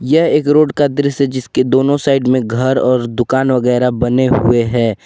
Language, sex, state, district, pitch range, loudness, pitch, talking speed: Hindi, male, Jharkhand, Garhwa, 125-140 Hz, -13 LUFS, 130 Hz, 190 wpm